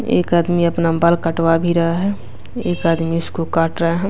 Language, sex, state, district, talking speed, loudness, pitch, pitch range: Hindi, female, Bihar, West Champaran, 205 wpm, -17 LUFS, 170 Hz, 165-175 Hz